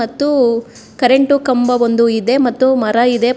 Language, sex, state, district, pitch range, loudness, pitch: Kannada, female, Karnataka, Bangalore, 235-260 Hz, -13 LUFS, 245 Hz